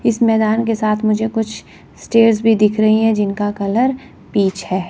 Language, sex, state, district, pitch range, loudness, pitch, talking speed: Hindi, female, Chandigarh, Chandigarh, 210-225 Hz, -16 LUFS, 220 Hz, 185 wpm